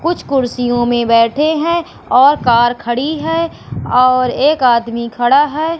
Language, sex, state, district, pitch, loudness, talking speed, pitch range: Hindi, female, Madhya Pradesh, Katni, 255 Hz, -13 LUFS, 145 wpm, 240-315 Hz